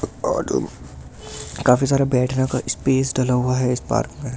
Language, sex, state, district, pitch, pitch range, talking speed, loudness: Hindi, male, Delhi, New Delhi, 130 Hz, 125-130 Hz, 165 wpm, -20 LUFS